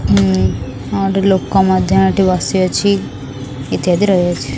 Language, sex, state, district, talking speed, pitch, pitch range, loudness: Odia, female, Odisha, Khordha, 145 wpm, 175 Hz, 130-190 Hz, -14 LUFS